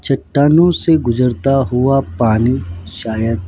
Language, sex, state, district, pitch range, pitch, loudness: Hindi, male, Rajasthan, Jaipur, 110-135 Hz, 125 Hz, -14 LUFS